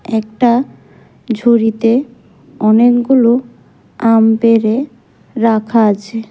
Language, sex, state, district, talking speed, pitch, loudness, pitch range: Bengali, female, Tripura, West Tripura, 65 wpm, 230 Hz, -13 LUFS, 225-240 Hz